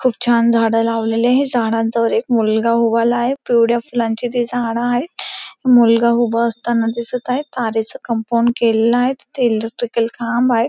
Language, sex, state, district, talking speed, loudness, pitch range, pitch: Marathi, female, Maharashtra, Pune, 150 wpm, -16 LUFS, 230-245 Hz, 235 Hz